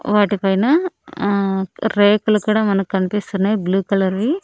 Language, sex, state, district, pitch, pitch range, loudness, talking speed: Telugu, female, Andhra Pradesh, Annamaya, 205 Hz, 195-215 Hz, -18 LUFS, 120 wpm